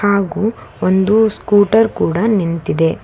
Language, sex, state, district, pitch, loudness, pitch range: Kannada, female, Karnataka, Bangalore, 205 Hz, -15 LUFS, 185-215 Hz